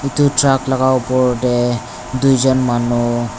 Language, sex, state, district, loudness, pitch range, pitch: Nagamese, male, Nagaland, Dimapur, -15 LUFS, 120-130 Hz, 130 Hz